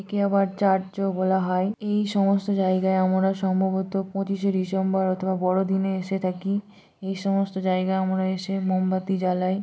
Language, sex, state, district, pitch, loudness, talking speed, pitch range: Bengali, female, West Bengal, Malda, 190 Hz, -24 LUFS, 155 wpm, 185-195 Hz